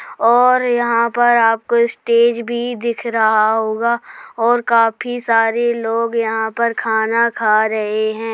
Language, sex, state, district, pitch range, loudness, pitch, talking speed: Hindi, female, Uttar Pradesh, Hamirpur, 225-235 Hz, -16 LUFS, 230 Hz, 145 wpm